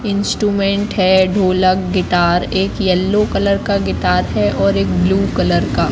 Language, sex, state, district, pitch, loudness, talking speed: Hindi, female, Madhya Pradesh, Katni, 185 Hz, -15 LUFS, 150 wpm